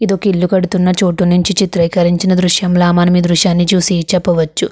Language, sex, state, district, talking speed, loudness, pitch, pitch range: Telugu, female, Andhra Pradesh, Krishna, 140 wpm, -12 LUFS, 180 Hz, 175-185 Hz